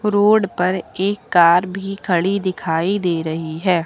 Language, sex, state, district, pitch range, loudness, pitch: Hindi, female, Uttar Pradesh, Lucknow, 170-195 Hz, -18 LUFS, 185 Hz